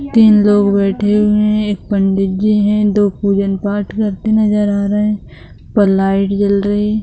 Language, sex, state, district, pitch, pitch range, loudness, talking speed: Hindi, female, Bihar, Lakhisarai, 205 Hz, 200-210 Hz, -14 LUFS, 190 wpm